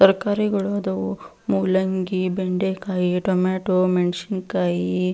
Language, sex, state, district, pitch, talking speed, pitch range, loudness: Kannada, female, Karnataka, Belgaum, 185 Hz, 70 wpm, 180-190 Hz, -22 LUFS